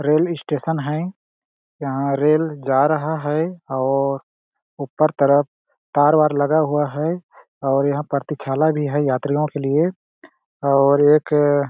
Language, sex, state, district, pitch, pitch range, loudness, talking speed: Hindi, male, Chhattisgarh, Balrampur, 145 Hz, 140-155 Hz, -19 LUFS, 140 wpm